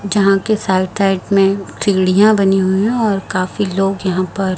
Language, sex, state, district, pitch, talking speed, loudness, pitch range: Hindi, female, Chhattisgarh, Raipur, 195 Hz, 185 wpm, -15 LUFS, 190-200 Hz